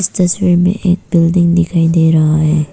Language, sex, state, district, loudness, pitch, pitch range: Hindi, female, Arunachal Pradesh, Papum Pare, -12 LUFS, 170 Hz, 160-180 Hz